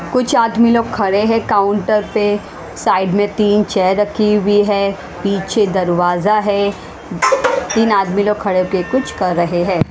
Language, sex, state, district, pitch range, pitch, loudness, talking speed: Hindi, female, Haryana, Rohtak, 190-215 Hz, 205 Hz, -15 LUFS, 165 wpm